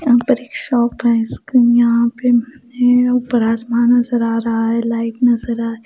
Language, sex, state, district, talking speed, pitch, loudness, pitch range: Hindi, female, Punjab, Pathankot, 195 wpm, 235 Hz, -15 LUFS, 230-245 Hz